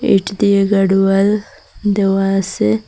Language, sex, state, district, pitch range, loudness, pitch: Bengali, female, Assam, Hailakandi, 195-205 Hz, -15 LUFS, 195 Hz